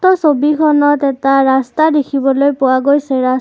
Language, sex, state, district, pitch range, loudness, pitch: Assamese, female, Assam, Kamrup Metropolitan, 270-295 Hz, -12 LUFS, 280 Hz